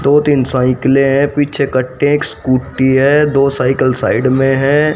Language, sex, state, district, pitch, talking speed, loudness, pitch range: Hindi, male, Haryana, Rohtak, 135 Hz, 155 wpm, -13 LUFS, 130-145 Hz